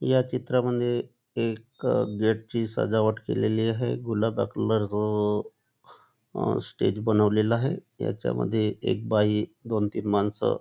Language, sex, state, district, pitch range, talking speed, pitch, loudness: Marathi, male, Maharashtra, Chandrapur, 105-115 Hz, 105 wpm, 110 Hz, -26 LUFS